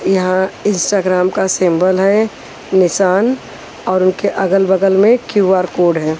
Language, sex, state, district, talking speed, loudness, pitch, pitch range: Hindi, female, Haryana, Rohtak, 135 wpm, -14 LUFS, 190 Hz, 185-200 Hz